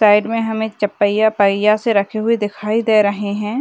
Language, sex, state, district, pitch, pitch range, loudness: Hindi, female, Bihar, Muzaffarpur, 210 Hz, 205-220 Hz, -16 LUFS